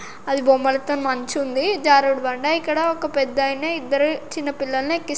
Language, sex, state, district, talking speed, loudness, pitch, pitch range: Telugu, female, Telangana, Karimnagar, 140 wpm, -20 LUFS, 280 Hz, 270-310 Hz